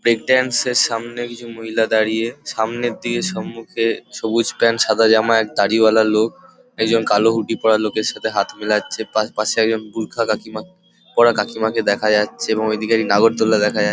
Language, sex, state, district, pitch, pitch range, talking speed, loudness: Bengali, male, West Bengal, Paschim Medinipur, 110 Hz, 110-115 Hz, 170 wpm, -18 LUFS